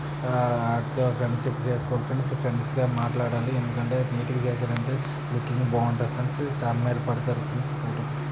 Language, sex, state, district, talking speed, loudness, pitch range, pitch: Telugu, male, Andhra Pradesh, Chittoor, 50 wpm, -27 LUFS, 125-135 Hz, 125 Hz